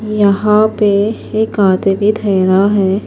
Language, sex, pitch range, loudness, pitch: Urdu, female, 195-215 Hz, -13 LUFS, 205 Hz